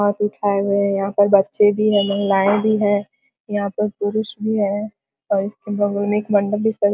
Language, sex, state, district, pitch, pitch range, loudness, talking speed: Hindi, female, Bihar, Vaishali, 205 Hz, 200-210 Hz, -19 LUFS, 225 wpm